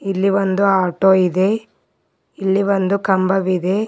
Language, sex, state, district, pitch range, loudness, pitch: Kannada, female, Karnataka, Bidar, 190-200 Hz, -17 LUFS, 195 Hz